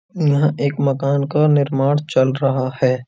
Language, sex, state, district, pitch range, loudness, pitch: Hindi, male, Uttar Pradesh, Budaun, 135-145 Hz, -17 LUFS, 140 Hz